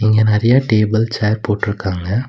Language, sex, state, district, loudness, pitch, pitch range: Tamil, male, Tamil Nadu, Nilgiris, -16 LUFS, 110 Hz, 105-110 Hz